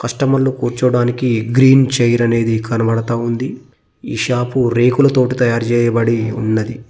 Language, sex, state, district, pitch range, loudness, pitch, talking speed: Telugu, male, Telangana, Mahabubabad, 115-130 Hz, -15 LUFS, 120 Hz, 115 wpm